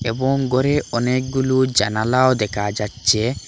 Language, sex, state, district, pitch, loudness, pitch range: Bengali, male, Assam, Hailakandi, 125 Hz, -19 LUFS, 110-130 Hz